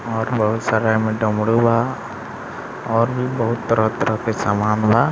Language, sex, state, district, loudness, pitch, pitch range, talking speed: Bhojpuri, male, Bihar, East Champaran, -19 LUFS, 115 Hz, 110-115 Hz, 150 wpm